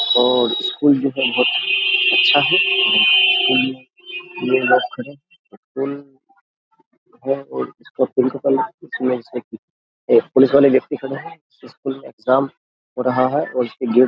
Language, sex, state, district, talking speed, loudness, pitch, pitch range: Hindi, male, Uttar Pradesh, Jyotiba Phule Nagar, 100 wpm, -17 LUFS, 140 Hz, 130-195 Hz